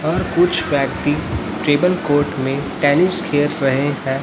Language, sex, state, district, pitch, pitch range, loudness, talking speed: Hindi, male, Chhattisgarh, Raipur, 145 Hz, 140-165 Hz, -17 LUFS, 140 wpm